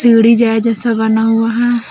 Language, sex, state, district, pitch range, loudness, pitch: Hindi, female, Jharkhand, Deoghar, 225-235 Hz, -12 LUFS, 230 Hz